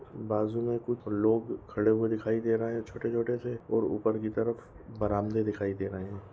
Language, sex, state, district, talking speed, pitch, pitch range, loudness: Hindi, male, Goa, North and South Goa, 210 wpm, 110 Hz, 105-115 Hz, -31 LUFS